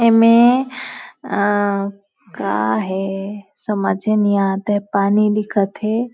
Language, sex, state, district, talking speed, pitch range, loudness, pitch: Hindi, female, Chhattisgarh, Balrampur, 100 wpm, 195-220 Hz, -17 LUFS, 205 Hz